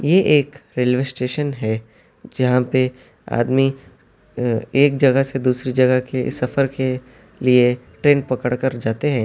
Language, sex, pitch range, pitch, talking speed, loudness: Urdu, male, 125-135 Hz, 130 Hz, 145 wpm, -19 LUFS